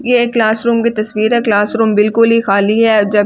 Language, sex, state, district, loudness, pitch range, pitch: Hindi, female, Delhi, New Delhi, -12 LUFS, 210-230 Hz, 220 Hz